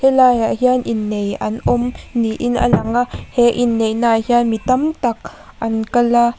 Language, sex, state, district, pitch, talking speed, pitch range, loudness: Mizo, female, Mizoram, Aizawl, 240 Hz, 190 wpm, 225-245 Hz, -17 LUFS